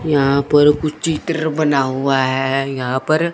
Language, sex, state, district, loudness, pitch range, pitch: Hindi, male, Chandigarh, Chandigarh, -17 LUFS, 135-155 Hz, 145 Hz